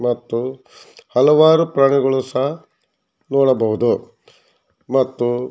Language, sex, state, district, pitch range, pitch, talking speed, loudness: Kannada, male, Karnataka, Shimoga, 120-140 Hz, 135 Hz, 65 wpm, -17 LUFS